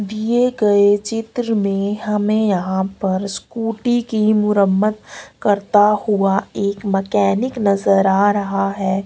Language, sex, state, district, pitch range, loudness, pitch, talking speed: Hindi, female, Haryana, Rohtak, 195-215 Hz, -17 LUFS, 205 Hz, 120 wpm